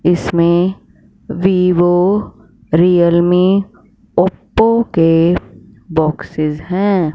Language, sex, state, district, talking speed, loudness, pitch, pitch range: Hindi, female, Punjab, Fazilka, 60 wpm, -14 LUFS, 175 Hz, 165-190 Hz